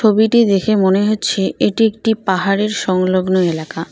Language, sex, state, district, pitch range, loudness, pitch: Bengali, female, West Bengal, Cooch Behar, 185-215 Hz, -15 LUFS, 195 Hz